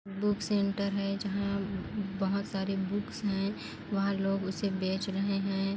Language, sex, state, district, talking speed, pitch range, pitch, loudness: Hindi, female, Chhattisgarh, Kabirdham, 145 wpm, 195-200 Hz, 195 Hz, -32 LUFS